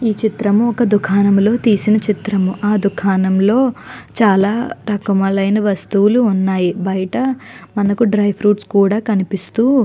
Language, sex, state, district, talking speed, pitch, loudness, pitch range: Telugu, female, Andhra Pradesh, Chittoor, 115 wpm, 205 Hz, -15 LUFS, 195-225 Hz